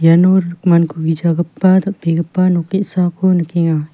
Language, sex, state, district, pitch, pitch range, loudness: Garo, female, Meghalaya, West Garo Hills, 175 Hz, 165-185 Hz, -14 LUFS